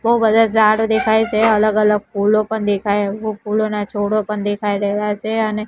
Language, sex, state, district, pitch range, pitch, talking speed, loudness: Gujarati, female, Gujarat, Gandhinagar, 205-220 Hz, 215 Hz, 180 wpm, -17 LUFS